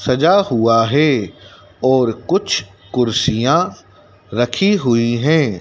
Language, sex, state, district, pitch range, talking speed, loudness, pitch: Hindi, male, Madhya Pradesh, Dhar, 110-135 Hz, 95 wpm, -16 LUFS, 120 Hz